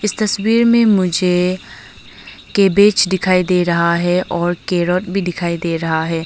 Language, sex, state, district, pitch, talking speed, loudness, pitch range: Hindi, female, Arunachal Pradesh, Longding, 180 Hz, 145 wpm, -15 LUFS, 170-195 Hz